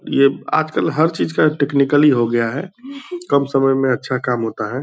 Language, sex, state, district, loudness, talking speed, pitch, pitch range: Hindi, male, Bihar, Purnia, -17 LUFS, 210 wpm, 140 Hz, 125-145 Hz